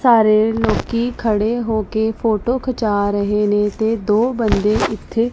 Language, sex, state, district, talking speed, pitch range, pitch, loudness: Punjabi, female, Punjab, Pathankot, 155 wpm, 210-230 Hz, 220 Hz, -17 LUFS